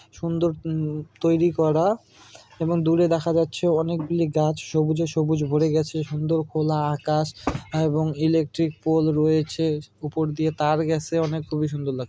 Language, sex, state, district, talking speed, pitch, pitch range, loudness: Bengali, male, West Bengal, Malda, 145 wpm, 155 Hz, 155-165 Hz, -23 LUFS